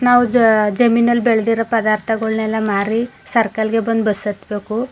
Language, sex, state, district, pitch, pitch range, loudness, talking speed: Kannada, female, Karnataka, Mysore, 225 Hz, 215-235 Hz, -16 LUFS, 135 wpm